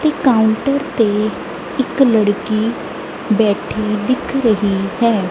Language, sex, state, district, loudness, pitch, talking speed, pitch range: Punjabi, female, Punjab, Kapurthala, -16 LUFS, 220 Hz, 100 wpm, 210-260 Hz